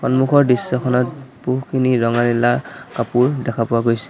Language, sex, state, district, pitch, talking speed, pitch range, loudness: Assamese, male, Assam, Sonitpur, 125 Hz, 130 wpm, 115-130 Hz, -18 LUFS